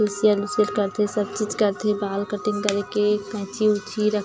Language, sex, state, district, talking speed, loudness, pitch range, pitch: Chhattisgarhi, female, Chhattisgarh, Jashpur, 185 wpm, -23 LUFS, 205-210 Hz, 210 Hz